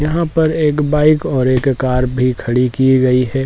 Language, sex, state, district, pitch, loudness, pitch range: Hindi, male, Jharkhand, Jamtara, 130 Hz, -14 LUFS, 125-150 Hz